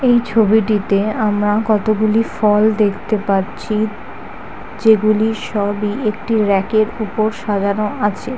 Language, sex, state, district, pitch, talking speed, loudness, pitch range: Bengali, female, West Bengal, North 24 Parganas, 215 Hz, 100 wpm, -16 LUFS, 205-220 Hz